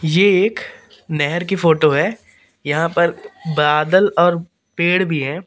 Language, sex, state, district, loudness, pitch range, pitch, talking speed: Hindi, male, Madhya Pradesh, Katni, -16 LUFS, 155-180 Hz, 170 Hz, 145 wpm